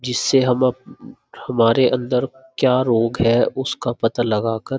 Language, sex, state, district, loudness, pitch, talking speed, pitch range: Hindi, male, Uttar Pradesh, Muzaffarnagar, -18 LUFS, 125 Hz, 165 wpm, 115-135 Hz